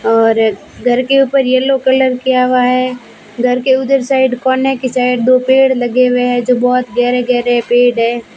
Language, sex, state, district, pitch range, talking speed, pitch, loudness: Hindi, female, Rajasthan, Bikaner, 245-260 Hz, 195 wpm, 250 Hz, -12 LUFS